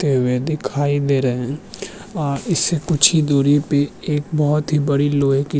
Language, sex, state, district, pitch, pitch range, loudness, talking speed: Hindi, male, Uttarakhand, Tehri Garhwal, 145 Hz, 140-155 Hz, -18 LUFS, 195 wpm